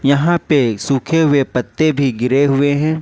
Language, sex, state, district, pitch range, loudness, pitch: Hindi, male, Jharkhand, Ranchi, 135-155 Hz, -15 LUFS, 140 Hz